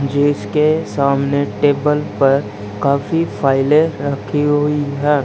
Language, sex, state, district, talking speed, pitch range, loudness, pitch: Hindi, male, Haryana, Charkhi Dadri, 105 wpm, 140-150 Hz, -16 LUFS, 140 Hz